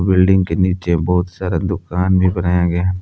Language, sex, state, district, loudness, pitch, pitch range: Hindi, male, Jharkhand, Palamu, -16 LUFS, 90 Hz, 90-95 Hz